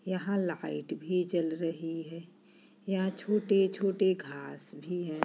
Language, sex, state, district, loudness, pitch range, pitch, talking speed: Hindi, female, Bihar, Saran, -32 LUFS, 165-190 Hz, 180 Hz, 125 wpm